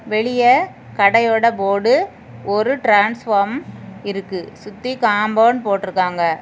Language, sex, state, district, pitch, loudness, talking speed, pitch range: Tamil, female, Tamil Nadu, Kanyakumari, 210 Hz, -17 LUFS, 85 wpm, 200-230 Hz